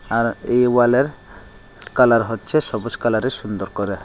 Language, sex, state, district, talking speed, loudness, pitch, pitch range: Bengali, male, Tripura, Unakoti, 135 wpm, -19 LUFS, 115 Hz, 100-125 Hz